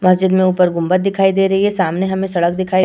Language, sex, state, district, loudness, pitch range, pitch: Hindi, female, Uttar Pradesh, Etah, -15 LUFS, 185-195 Hz, 185 Hz